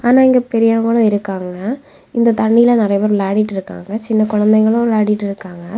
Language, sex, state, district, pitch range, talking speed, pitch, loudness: Tamil, female, Tamil Nadu, Kanyakumari, 205-230 Hz, 145 wpm, 215 Hz, -14 LUFS